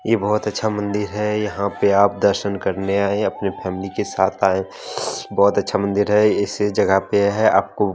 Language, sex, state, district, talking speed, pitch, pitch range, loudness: Hindi, male, Chandigarh, Chandigarh, 195 wpm, 100 Hz, 100-105 Hz, -19 LUFS